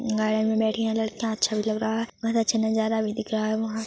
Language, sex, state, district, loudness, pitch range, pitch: Hindi, female, Chhattisgarh, Korba, -25 LUFS, 215-225 Hz, 220 Hz